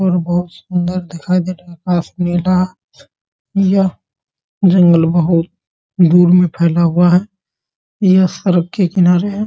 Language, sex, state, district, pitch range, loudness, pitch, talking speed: Hindi, male, Bihar, Muzaffarpur, 175-185 Hz, -14 LUFS, 180 Hz, 145 wpm